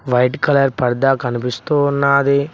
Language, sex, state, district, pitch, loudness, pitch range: Telugu, male, Telangana, Mahabubabad, 135 Hz, -16 LUFS, 125-140 Hz